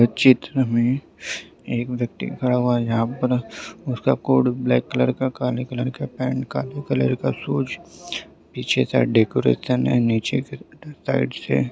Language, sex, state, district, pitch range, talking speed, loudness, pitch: Hindi, male, Maharashtra, Chandrapur, 120-130 Hz, 135 wpm, -22 LUFS, 125 Hz